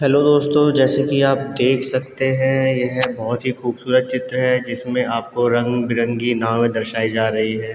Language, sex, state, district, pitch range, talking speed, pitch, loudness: Hindi, male, Uttarakhand, Tehri Garhwal, 120-130 Hz, 170 wpm, 125 Hz, -18 LUFS